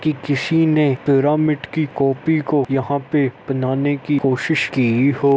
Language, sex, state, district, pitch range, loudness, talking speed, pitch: Hindi, male, Uttar Pradesh, Etah, 135-150 Hz, -18 LUFS, 170 wpm, 140 Hz